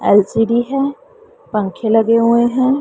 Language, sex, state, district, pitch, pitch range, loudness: Hindi, female, Punjab, Pathankot, 235 Hz, 225-275 Hz, -15 LUFS